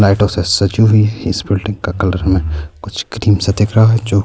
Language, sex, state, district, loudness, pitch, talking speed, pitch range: Urdu, male, Bihar, Saharsa, -14 LUFS, 100 Hz, 240 wpm, 95-105 Hz